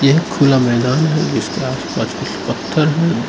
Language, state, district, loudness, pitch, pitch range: Hindi, Arunachal Pradesh, Lower Dibang Valley, -16 LUFS, 155 Hz, 135-160 Hz